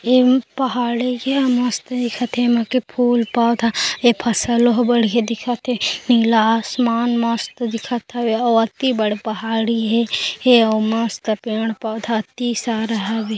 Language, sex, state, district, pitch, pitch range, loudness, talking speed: Hindi, female, Chhattisgarh, Korba, 235 Hz, 225-245 Hz, -18 LUFS, 165 wpm